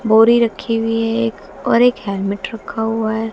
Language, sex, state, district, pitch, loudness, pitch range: Hindi, female, Haryana, Jhajjar, 225 Hz, -17 LUFS, 220-230 Hz